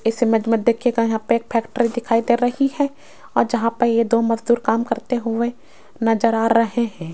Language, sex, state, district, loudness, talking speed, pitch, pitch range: Hindi, female, Rajasthan, Jaipur, -19 LUFS, 210 wpm, 230 Hz, 225-240 Hz